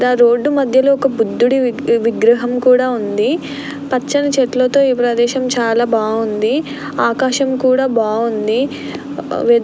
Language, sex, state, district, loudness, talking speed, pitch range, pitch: Telugu, female, Andhra Pradesh, Krishna, -15 LUFS, 95 wpm, 235-270 Hz, 250 Hz